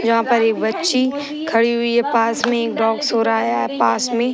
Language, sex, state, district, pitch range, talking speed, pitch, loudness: Hindi, female, Bihar, Sitamarhi, 225-240 Hz, 250 wpm, 230 Hz, -18 LUFS